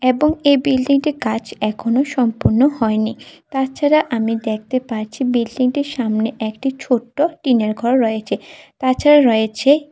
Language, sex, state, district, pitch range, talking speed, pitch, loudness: Bengali, female, Tripura, West Tripura, 225-280 Hz, 120 wpm, 255 Hz, -17 LUFS